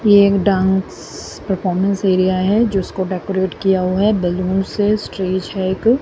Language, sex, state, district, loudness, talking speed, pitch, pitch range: Hindi, female, Haryana, Jhajjar, -17 LUFS, 160 wpm, 190 Hz, 185-200 Hz